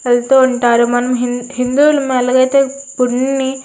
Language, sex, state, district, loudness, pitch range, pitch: Telugu, female, Andhra Pradesh, Srikakulam, -13 LUFS, 245-270 Hz, 255 Hz